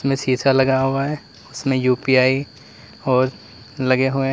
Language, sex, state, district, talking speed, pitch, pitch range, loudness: Hindi, male, Uttar Pradesh, Saharanpur, 150 wpm, 130 Hz, 130-135 Hz, -19 LUFS